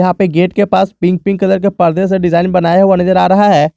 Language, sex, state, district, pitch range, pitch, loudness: Hindi, male, Jharkhand, Garhwa, 175-195 Hz, 185 Hz, -11 LUFS